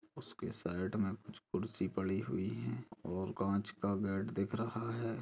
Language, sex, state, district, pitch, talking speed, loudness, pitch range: Hindi, male, Chhattisgarh, Kabirdham, 100 Hz, 185 wpm, -39 LUFS, 95-115 Hz